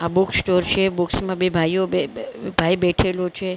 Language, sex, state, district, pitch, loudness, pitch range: Gujarati, female, Maharashtra, Mumbai Suburban, 185 Hz, -21 LUFS, 175-190 Hz